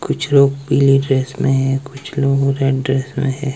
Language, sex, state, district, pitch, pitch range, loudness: Hindi, male, Himachal Pradesh, Shimla, 135 Hz, 135-140 Hz, -16 LUFS